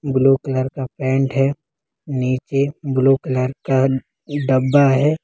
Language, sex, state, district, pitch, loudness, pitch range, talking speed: Hindi, male, Jharkhand, Ranchi, 135 Hz, -18 LUFS, 130-140 Hz, 125 wpm